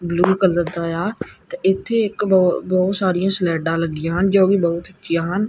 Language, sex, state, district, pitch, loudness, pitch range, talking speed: Punjabi, female, Punjab, Kapurthala, 185 Hz, -19 LUFS, 170-195 Hz, 185 wpm